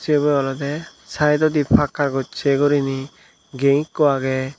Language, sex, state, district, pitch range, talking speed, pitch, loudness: Chakma, male, Tripura, Dhalai, 135-150 Hz, 115 wpm, 140 Hz, -19 LUFS